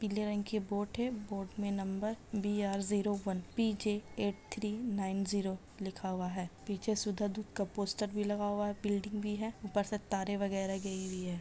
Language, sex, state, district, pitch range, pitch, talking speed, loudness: Hindi, female, Bihar, Jamui, 195-210 Hz, 205 Hz, 200 wpm, -37 LUFS